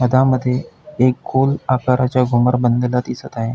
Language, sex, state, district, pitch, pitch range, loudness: Marathi, male, Maharashtra, Pune, 125 Hz, 125-130 Hz, -17 LUFS